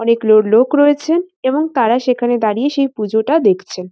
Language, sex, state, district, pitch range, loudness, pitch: Bengali, female, West Bengal, North 24 Parganas, 220-295 Hz, -14 LUFS, 250 Hz